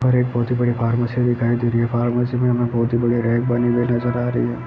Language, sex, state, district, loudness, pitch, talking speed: Hindi, male, Bihar, Purnia, -19 LUFS, 120 Hz, 245 wpm